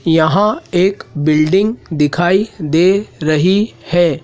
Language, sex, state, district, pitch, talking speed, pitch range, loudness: Hindi, male, Madhya Pradesh, Dhar, 175 Hz, 100 wpm, 155-200 Hz, -14 LUFS